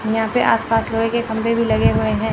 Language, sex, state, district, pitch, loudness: Hindi, female, Chandigarh, Chandigarh, 225 Hz, -18 LUFS